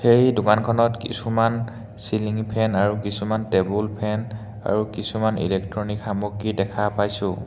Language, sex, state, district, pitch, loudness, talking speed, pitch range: Assamese, male, Assam, Hailakandi, 105 Hz, -23 LUFS, 130 wpm, 105-110 Hz